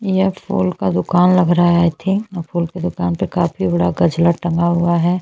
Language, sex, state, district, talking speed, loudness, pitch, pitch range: Hindi, female, Chhattisgarh, Bastar, 230 wpm, -16 LUFS, 175 Hz, 165-180 Hz